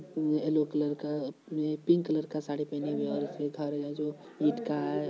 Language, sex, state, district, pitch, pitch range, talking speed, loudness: Hindi, male, Bihar, Supaul, 150 Hz, 145-155 Hz, 190 wpm, -32 LUFS